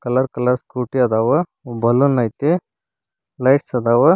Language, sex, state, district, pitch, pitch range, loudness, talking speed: Kannada, male, Karnataka, Koppal, 125 Hz, 120-140 Hz, -18 LUFS, 115 wpm